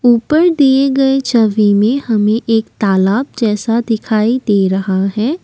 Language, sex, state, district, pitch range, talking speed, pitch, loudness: Hindi, female, Assam, Kamrup Metropolitan, 210-265 Hz, 145 wpm, 225 Hz, -13 LUFS